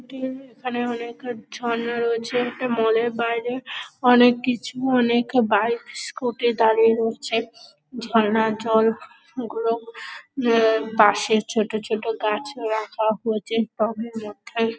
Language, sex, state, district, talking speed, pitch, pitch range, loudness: Bengali, female, West Bengal, Dakshin Dinajpur, 110 wpm, 230 Hz, 225-245 Hz, -22 LUFS